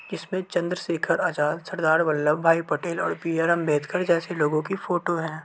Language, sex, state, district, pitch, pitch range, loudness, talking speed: Hindi, male, Uttar Pradesh, Varanasi, 170 Hz, 155-175 Hz, -24 LUFS, 175 wpm